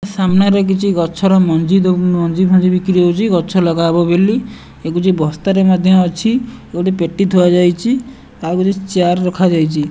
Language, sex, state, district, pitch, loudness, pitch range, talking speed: Odia, male, Odisha, Nuapada, 185 Hz, -13 LUFS, 175-195 Hz, 145 wpm